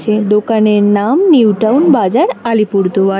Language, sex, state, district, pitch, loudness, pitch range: Bengali, female, West Bengal, Alipurduar, 215 Hz, -11 LUFS, 205-230 Hz